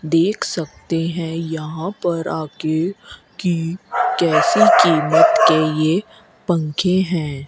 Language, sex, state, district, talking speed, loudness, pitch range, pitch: Hindi, female, Rajasthan, Bikaner, 105 wpm, -18 LUFS, 160-180 Hz, 165 Hz